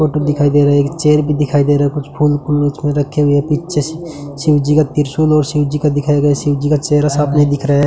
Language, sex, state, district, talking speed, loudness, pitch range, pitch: Hindi, male, Rajasthan, Bikaner, 290 wpm, -14 LUFS, 145-150 Hz, 145 Hz